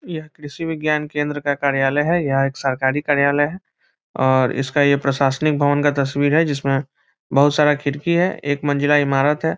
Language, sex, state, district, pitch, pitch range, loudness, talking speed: Hindi, male, Bihar, Muzaffarpur, 145 Hz, 140-150 Hz, -18 LUFS, 180 wpm